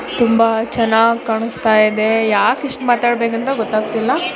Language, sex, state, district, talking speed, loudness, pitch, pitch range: Kannada, female, Karnataka, Gulbarga, 125 wpm, -15 LUFS, 230 Hz, 220-240 Hz